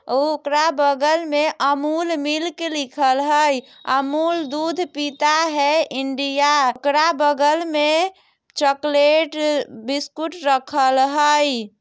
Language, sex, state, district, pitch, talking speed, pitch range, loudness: Bajjika, female, Bihar, Vaishali, 295 Hz, 100 wpm, 280-310 Hz, -19 LUFS